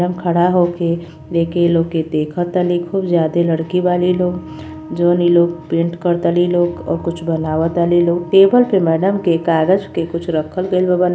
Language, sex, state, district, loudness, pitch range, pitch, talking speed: Bhojpuri, female, Uttar Pradesh, Gorakhpur, -16 LUFS, 165-180 Hz, 175 Hz, 195 wpm